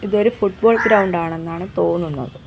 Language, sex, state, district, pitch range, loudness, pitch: Malayalam, female, Kerala, Kollam, 165-210 Hz, -18 LUFS, 185 Hz